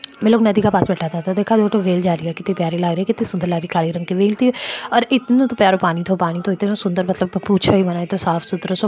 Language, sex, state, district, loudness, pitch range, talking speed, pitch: Marwari, female, Rajasthan, Churu, -18 LUFS, 175-210 Hz, 235 wpm, 190 Hz